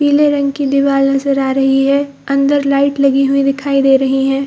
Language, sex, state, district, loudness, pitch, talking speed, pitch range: Hindi, female, Bihar, Jahanabad, -13 LUFS, 275 Hz, 230 wpm, 275-280 Hz